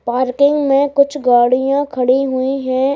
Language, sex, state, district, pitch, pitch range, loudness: Hindi, female, Bihar, Bhagalpur, 265 Hz, 255-280 Hz, -14 LUFS